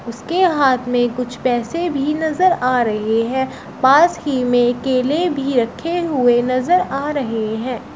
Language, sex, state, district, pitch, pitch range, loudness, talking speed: Hindi, female, Uttar Pradesh, Shamli, 260 Hz, 245-305 Hz, -17 LUFS, 160 wpm